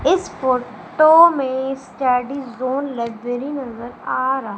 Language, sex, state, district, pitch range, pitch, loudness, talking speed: Hindi, female, Madhya Pradesh, Umaria, 245-275 Hz, 260 Hz, -18 LUFS, 120 wpm